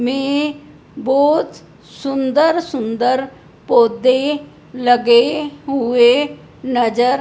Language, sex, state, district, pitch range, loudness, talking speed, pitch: Hindi, male, Punjab, Fazilka, 245-290 Hz, -16 LUFS, 65 wpm, 265 Hz